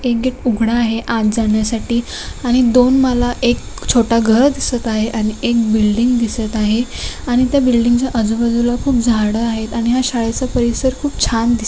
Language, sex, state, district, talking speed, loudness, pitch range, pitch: Marathi, female, Maharashtra, Nagpur, 175 wpm, -15 LUFS, 225-250 Hz, 235 Hz